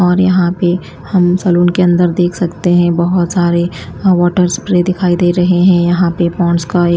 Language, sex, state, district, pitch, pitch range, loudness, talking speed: Hindi, female, Maharashtra, Gondia, 175 Hz, 175-180 Hz, -12 LUFS, 215 wpm